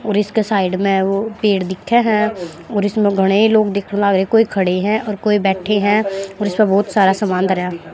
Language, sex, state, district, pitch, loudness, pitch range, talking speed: Hindi, female, Haryana, Jhajjar, 200 Hz, -16 LUFS, 190-215 Hz, 210 wpm